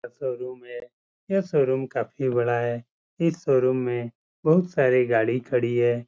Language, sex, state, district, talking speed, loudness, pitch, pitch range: Hindi, male, Uttar Pradesh, Muzaffarnagar, 160 wpm, -24 LUFS, 125 Hz, 120-135 Hz